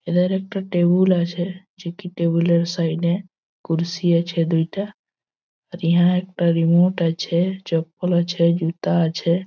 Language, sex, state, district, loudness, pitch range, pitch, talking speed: Bengali, male, West Bengal, Malda, -20 LUFS, 170-180 Hz, 175 Hz, 110 wpm